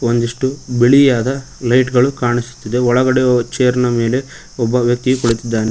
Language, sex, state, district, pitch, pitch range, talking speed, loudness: Kannada, male, Karnataka, Koppal, 125 Hz, 120-130 Hz, 125 wpm, -15 LUFS